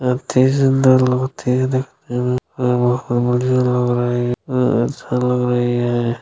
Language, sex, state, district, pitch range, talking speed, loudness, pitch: Maithili, male, Bihar, Supaul, 120-130 Hz, 75 wpm, -17 LUFS, 125 Hz